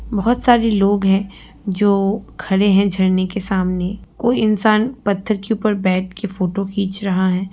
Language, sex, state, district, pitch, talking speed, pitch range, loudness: Hindi, female, Bihar, Lakhisarai, 200 Hz, 165 wpm, 190-215 Hz, -18 LUFS